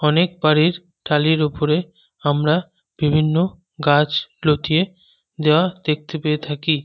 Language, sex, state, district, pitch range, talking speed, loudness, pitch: Bengali, male, West Bengal, North 24 Parganas, 150-170 Hz, 105 wpm, -19 LUFS, 155 Hz